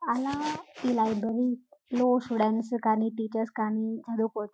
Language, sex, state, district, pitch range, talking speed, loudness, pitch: Telugu, female, Telangana, Karimnagar, 220-250 Hz, 105 wpm, -29 LUFS, 230 Hz